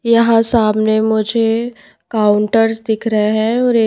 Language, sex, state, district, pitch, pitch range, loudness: Hindi, female, Himachal Pradesh, Shimla, 225 Hz, 215-230 Hz, -14 LUFS